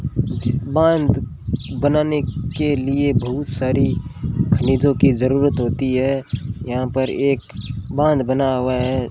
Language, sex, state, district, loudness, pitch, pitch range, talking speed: Hindi, male, Rajasthan, Bikaner, -19 LUFS, 130 Hz, 125-140 Hz, 120 wpm